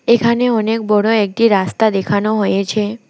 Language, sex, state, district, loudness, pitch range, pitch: Bengali, female, West Bengal, Alipurduar, -15 LUFS, 205-225 Hz, 215 Hz